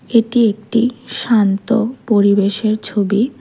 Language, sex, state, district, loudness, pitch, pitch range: Bengali, female, Tripura, West Tripura, -16 LUFS, 225 Hz, 205-235 Hz